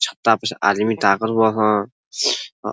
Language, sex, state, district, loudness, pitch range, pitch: Bhojpuri, male, Uttar Pradesh, Ghazipur, -19 LUFS, 100-110 Hz, 110 Hz